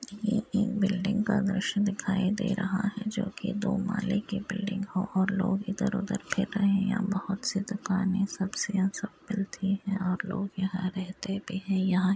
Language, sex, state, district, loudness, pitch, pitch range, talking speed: Hindi, female, Uttar Pradesh, Muzaffarnagar, -30 LUFS, 200 Hz, 195-205 Hz, 190 wpm